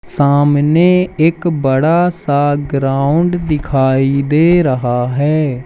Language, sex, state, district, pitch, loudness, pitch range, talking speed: Hindi, male, Madhya Pradesh, Umaria, 145 Hz, -13 LUFS, 135-165 Hz, 95 wpm